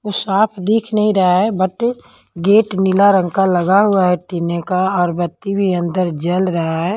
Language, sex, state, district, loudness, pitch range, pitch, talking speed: Hindi, female, Punjab, Pathankot, -16 LUFS, 175-205 Hz, 190 Hz, 190 wpm